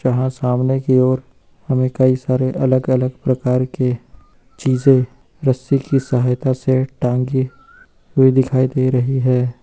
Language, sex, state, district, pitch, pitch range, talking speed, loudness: Hindi, male, Uttar Pradesh, Lucknow, 130 Hz, 125-130 Hz, 135 wpm, -17 LUFS